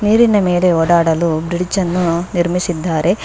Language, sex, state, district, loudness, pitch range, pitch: Kannada, female, Karnataka, Bangalore, -15 LUFS, 170-180 Hz, 175 Hz